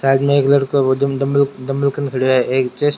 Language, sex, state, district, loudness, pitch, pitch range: Rajasthani, male, Rajasthan, Churu, -16 LUFS, 135 Hz, 130-140 Hz